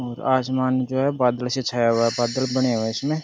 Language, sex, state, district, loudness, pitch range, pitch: Marwari, male, Rajasthan, Nagaur, -22 LUFS, 120-130 Hz, 130 Hz